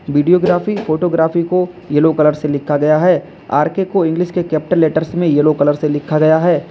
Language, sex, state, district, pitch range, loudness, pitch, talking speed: Hindi, male, Uttar Pradesh, Lalitpur, 150-180 Hz, -14 LUFS, 160 Hz, 215 wpm